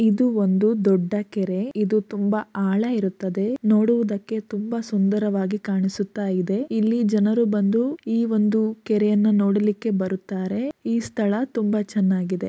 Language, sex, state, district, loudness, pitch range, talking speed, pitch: Kannada, female, Karnataka, Shimoga, -22 LUFS, 200-225 Hz, 115 wpm, 210 Hz